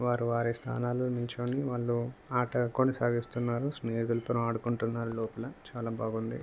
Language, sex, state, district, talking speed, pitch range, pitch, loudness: Telugu, male, Telangana, Nalgonda, 110 wpm, 115-125 Hz, 120 Hz, -32 LUFS